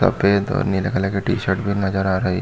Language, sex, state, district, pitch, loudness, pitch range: Hindi, male, Chhattisgarh, Bilaspur, 100 Hz, -20 LUFS, 95-100 Hz